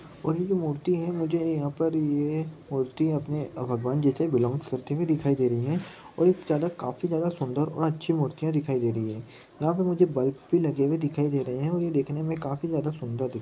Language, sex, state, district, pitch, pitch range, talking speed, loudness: Hindi, male, West Bengal, Jalpaiguri, 150 Hz, 135-165 Hz, 240 wpm, -27 LUFS